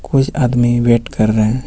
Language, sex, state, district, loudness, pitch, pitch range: Hindi, male, Jharkhand, Ranchi, -14 LUFS, 120 Hz, 115-130 Hz